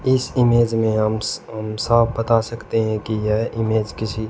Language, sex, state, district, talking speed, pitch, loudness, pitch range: Hindi, male, Haryana, Charkhi Dadri, 195 wpm, 110 Hz, -20 LUFS, 110-115 Hz